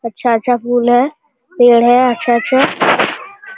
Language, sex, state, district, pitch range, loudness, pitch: Hindi, male, Bihar, Jamui, 240-280 Hz, -12 LUFS, 245 Hz